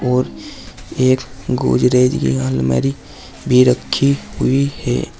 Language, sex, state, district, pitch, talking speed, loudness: Hindi, male, Uttar Pradesh, Saharanpur, 125 Hz, 105 wpm, -16 LUFS